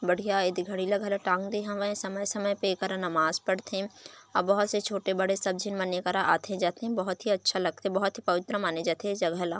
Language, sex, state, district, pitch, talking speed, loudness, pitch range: Chhattisgarhi, female, Chhattisgarh, Raigarh, 195 Hz, 240 wpm, -29 LUFS, 180-205 Hz